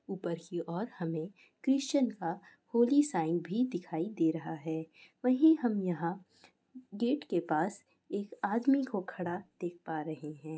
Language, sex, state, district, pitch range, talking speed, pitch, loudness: Hindi, female, Bihar, Gopalganj, 165-240 Hz, 155 wpm, 185 Hz, -33 LUFS